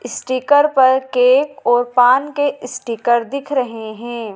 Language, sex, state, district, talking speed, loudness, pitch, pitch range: Hindi, female, Madhya Pradesh, Dhar, 135 wpm, -16 LUFS, 250 Hz, 240-275 Hz